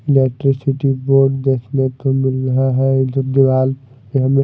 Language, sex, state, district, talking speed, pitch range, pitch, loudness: Hindi, male, Odisha, Malkangiri, 160 wpm, 130-135 Hz, 135 Hz, -16 LUFS